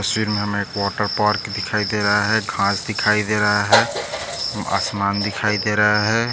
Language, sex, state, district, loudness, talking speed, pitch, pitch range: Hindi, male, Maharashtra, Aurangabad, -19 LUFS, 190 wpm, 105 Hz, 100-105 Hz